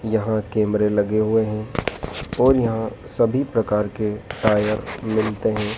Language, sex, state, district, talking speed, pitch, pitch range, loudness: Hindi, male, Madhya Pradesh, Dhar, 135 wpm, 110 Hz, 105-110 Hz, -21 LUFS